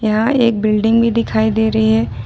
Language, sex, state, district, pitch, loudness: Hindi, female, Jharkhand, Ranchi, 215 Hz, -14 LUFS